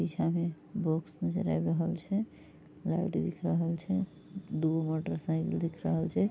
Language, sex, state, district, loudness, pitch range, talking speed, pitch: Maithili, female, Bihar, Vaishali, -33 LUFS, 160-175 Hz, 170 wpm, 165 Hz